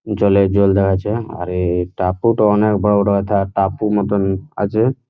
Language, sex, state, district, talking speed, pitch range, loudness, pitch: Bengali, male, West Bengal, Jhargram, 120 wpm, 95-105 Hz, -16 LUFS, 100 Hz